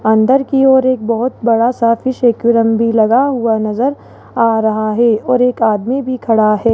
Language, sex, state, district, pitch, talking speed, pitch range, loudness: Hindi, male, Rajasthan, Jaipur, 230 Hz, 180 wpm, 225-255 Hz, -13 LUFS